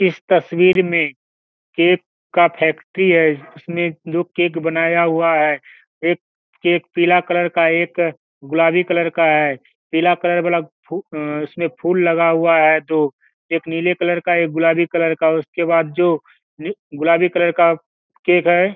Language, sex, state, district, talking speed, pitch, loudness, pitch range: Hindi, male, Bihar, Kishanganj, 155 wpm, 170 Hz, -17 LUFS, 160-175 Hz